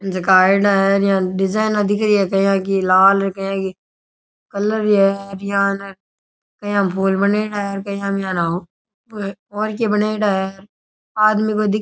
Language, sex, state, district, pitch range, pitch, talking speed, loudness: Rajasthani, male, Rajasthan, Nagaur, 195-205 Hz, 195 Hz, 170 wpm, -17 LUFS